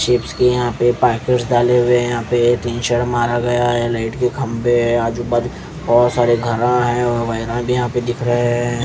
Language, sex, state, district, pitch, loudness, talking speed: Hindi, male, Bihar, West Champaran, 120 Hz, -17 LUFS, 195 wpm